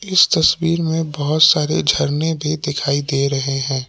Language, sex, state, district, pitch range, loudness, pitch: Hindi, male, Jharkhand, Palamu, 140-160 Hz, -17 LUFS, 150 Hz